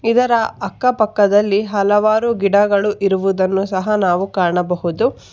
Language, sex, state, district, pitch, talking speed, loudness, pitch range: Kannada, female, Karnataka, Bangalore, 200 Hz, 90 wpm, -16 LUFS, 190-215 Hz